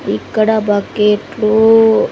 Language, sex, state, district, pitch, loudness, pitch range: Telugu, female, Andhra Pradesh, Sri Satya Sai, 215 Hz, -12 LUFS, 210-220 Hz